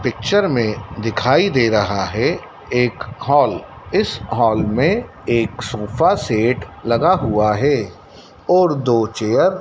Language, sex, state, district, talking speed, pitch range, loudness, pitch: Hindi, male, Madhya Pradesh, Dhar, 130 wpm, 105-130 Hz, -17 LUFS, 115 Hz